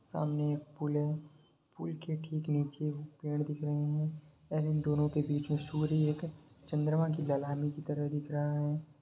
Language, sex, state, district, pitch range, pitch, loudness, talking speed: Hindi, male, Jharkhand, Jamtara, 150-155 Hz, 150 Hz, -35 LUFS, 180 wpm